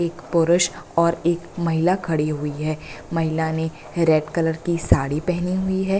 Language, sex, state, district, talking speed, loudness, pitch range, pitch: Hindi, female, Bihar, Bhagalpur, 170 wpm, -22 LUFS, 155-170 Hz, 165 Hz